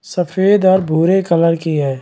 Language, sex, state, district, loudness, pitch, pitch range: Hindi, male, Chhattisgarh, Raigarh, -14 LUFS, 170 Hz, 160-190 Hz